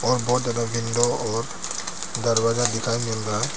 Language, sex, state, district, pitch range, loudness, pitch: Hindi, male, Arunachal Pradesh, Papum Pare, 115-120 Hz, -23 LUFS, 115 Hz